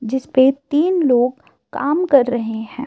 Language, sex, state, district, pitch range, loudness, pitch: Hindi, female, Himachal Pradesh, Shimla, 245-285 Hz, -17 LUFS, 265 Hz